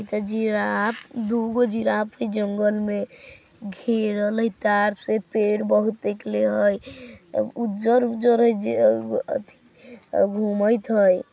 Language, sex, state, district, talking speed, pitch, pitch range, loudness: Hindi, female, Bihar, Vaishali, 95 wpm, 215 Hz, 205-230 Hz, -23 LUFS